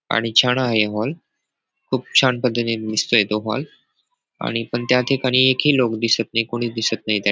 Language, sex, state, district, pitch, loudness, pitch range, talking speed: Marathi, male, Maharashtra, Pune, 120 Hz, -19 LUFS, 110-130 Hz, 195 wpm